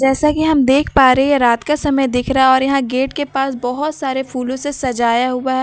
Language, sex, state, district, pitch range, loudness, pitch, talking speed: Hindi, female, Bihar, Katihar, 255-285 Hz, -15 LUFS, 265 Hz, 265 wpm